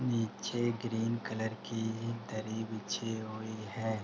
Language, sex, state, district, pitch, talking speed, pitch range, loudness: Hindi, male, Uttar Pradesh, Hamirpur, 110 Hz, 135 wpm, 110-115 Hz, -37 LUFS